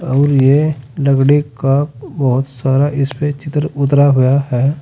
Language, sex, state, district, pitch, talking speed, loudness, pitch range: Hindi, male, Uttar Pradesh, Saharanpur, 140 Hz, 135 wpm, -14 LUFS, 135-145 Hz